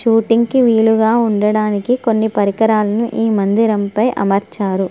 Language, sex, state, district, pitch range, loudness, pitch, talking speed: Telugu, female, Andhra Pradesh, Srikakulam, 205-230 Hz, -15 LUFS, 220 Hz, 110 wpm